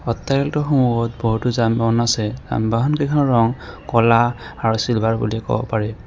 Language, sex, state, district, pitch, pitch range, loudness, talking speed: Assamese, male, Assam, Kamrup Metropolitan, 115 Hz, 115-125 Hz, -19 LUFS, 140 wpm